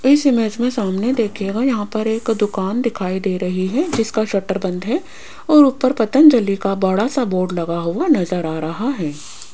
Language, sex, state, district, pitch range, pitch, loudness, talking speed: Hindi, female, Rajasthan, Jaipur, 185-245 Hz, 215 Hz, -18 LUFS, 190 wpm